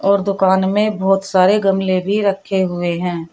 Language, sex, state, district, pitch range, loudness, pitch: Hindi, female, Uttar Pradesh, Shamli, 185-200 Hz, -16 LUFS, 190 Hz